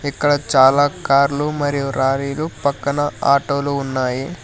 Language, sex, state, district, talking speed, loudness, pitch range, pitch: Telugu, male, Telangana, Hyderabad, 120 wpm, -18 LUFS, 135-145 Hz, 140 Hz